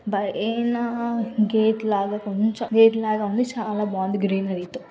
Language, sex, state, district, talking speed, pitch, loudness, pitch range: Telugu, female, Andhra Pradesh, Guntur, 135 wpm, 215 Hz, -23 LUFS, 200-225 Hz